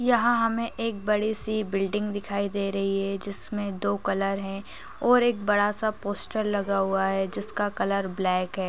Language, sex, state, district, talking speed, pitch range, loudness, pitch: Hindi, female, Bihar, Bhagalpur, 180 wpm, 195-215 Hz, -26 LUFS, 205 Hz